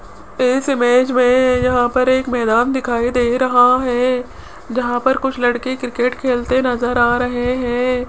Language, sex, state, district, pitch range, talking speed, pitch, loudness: Hindi, female, Rajasthan, Jaipur, 245-255 Hz, 155 wpm, 250 Hz, -16 LUFS